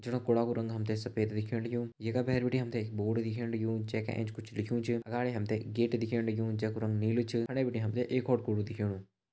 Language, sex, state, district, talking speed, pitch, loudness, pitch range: Hindi, male, Uttarakhand, Uttarkashi, 255 wpm, 115 Hz, -34 LUFS, 110-120 Hz